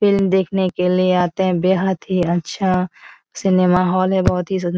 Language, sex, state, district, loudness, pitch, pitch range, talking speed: Hindi, female, Bihar, Jahanabad, -17 LUFS, 185 Hz, 180-190 Hz, 200 wpm